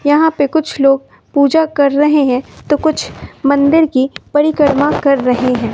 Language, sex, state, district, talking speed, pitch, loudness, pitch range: Hindi, female, Bihar, West Champaran, 165 wpm, 285 Hz, -13 LUFS, 275-300 Hz